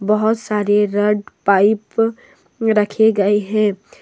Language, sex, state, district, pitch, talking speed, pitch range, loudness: Hindi, female, Jharkhand, Deoghar, 210 Hz, 105 wpm, 205-220 Hz, -17 LUFS